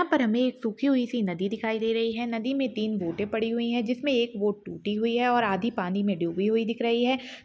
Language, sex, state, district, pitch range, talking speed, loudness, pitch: Hindi, female, Chhattisgarh, Balrampur, 210-245 Hz, 265 wpm, -27 LUFS, 230 Hz